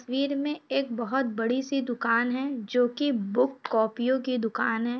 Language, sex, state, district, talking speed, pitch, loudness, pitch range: Hindi, female, Bihar, Samastipur, 180 wpm, 250 Hz, -27 LUFS, 235-270 Hz